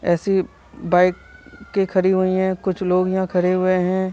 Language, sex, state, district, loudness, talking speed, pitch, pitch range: Hindi, male, Bihar, Vaishali, -19 LUFS, 175 wpm, 185 Hz, 185-190 Hz